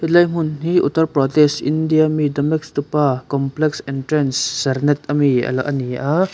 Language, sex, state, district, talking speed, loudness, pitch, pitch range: Mizo, male, Mizoram, Aizawl, 130 wpm, -18 LUFS, 145 Hz, 135-155 Hz